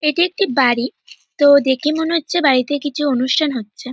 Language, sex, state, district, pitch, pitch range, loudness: Bengali, male, West Bengal, North 24 Parganas, 285 Hz, 260-315 Hz, -16 LUFS